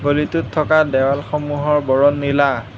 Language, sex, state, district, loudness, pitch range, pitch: Assamese, male, Assam, Hailakandi, -17 LUFS, 140-150 Hz, 145 Hz